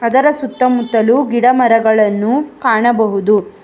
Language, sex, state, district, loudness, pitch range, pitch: Kannada, female, Karnataka, Bangalore, -13 LUFS, 220-255 Hz, 235 Hz